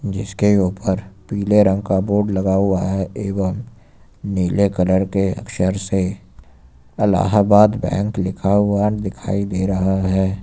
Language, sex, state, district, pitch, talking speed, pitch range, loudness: Hindi, male, Uttar Pradesh, Lucknow, 95 Hz, 130 wpm, 95-100 Hz, -18 LUFS